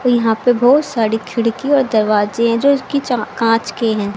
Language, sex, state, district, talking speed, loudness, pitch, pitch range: Hindi, female, Haryana, Rohtak, 200 wpm, -15 LUFS, 235 Hz, 225-260 Hz